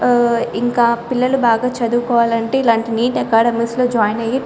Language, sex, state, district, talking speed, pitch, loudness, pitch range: Telugu, female, Telangana, Karimnagar, 200 wpm, 235 Hz, -16 LUFS, 230-245 Hz